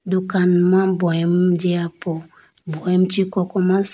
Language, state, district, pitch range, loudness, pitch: Idu Mishmi, Arunachal Pradesh, Lower Dibang Valley, 175-190 Hz, -18 LUFS, 180 Hz